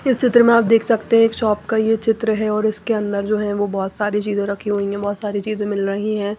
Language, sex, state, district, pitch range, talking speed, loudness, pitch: Hindi, female, Punjab, Pathankot, 205-225 Hz, 290 wpm, -18 LUFS, 215 Hz